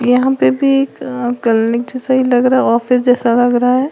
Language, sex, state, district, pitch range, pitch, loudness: Hindi, female, Uttar Pradesh, Lalitpur, 240-260 Hz, 250 Hz, -13 LUFS